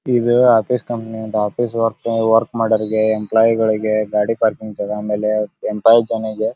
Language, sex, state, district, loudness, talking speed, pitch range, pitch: Kannada, male, Karnataka, Belgaum, -17 LUFS, 110 wpm, 110-115 Hz, 110 Hz